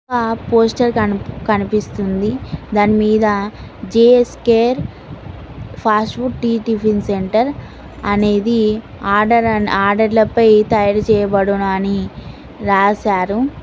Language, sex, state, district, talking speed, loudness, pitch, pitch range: Telugu, female, Telangana, Mahabubabad, 80 wpm, -15 LUFS, 215 Hz, 205-230 Hz